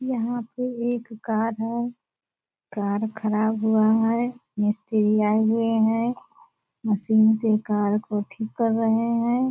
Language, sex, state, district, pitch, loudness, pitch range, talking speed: Hindi, female, Bihar, Purnia, 220 Hz, -23 LUFS, 215-235 Hz, 130 wpm